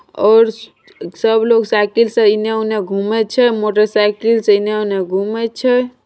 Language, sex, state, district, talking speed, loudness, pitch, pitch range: Angika, female, Bihar, Begusarai, 150 wpm, -14 LUFS, 220 Hz, 210-230 Hz